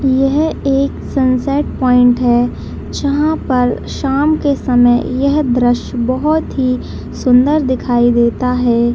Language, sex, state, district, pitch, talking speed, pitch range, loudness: Hindi, female, Bihar, Madhepura, 255 Hz, 125 wpm, 245-280 Hz, -14 LUFS